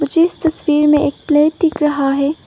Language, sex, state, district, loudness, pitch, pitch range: Hindi, female, Arunachal Pradesh, Papum Pare, -15 LUFS, 300 Hz, 295-320 Hz